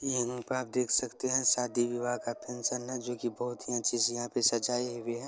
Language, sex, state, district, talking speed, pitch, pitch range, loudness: Hindi, male, Bihar, Saran, 250 wpm, 120 Hz, 120-125 Hz, -31 LUFS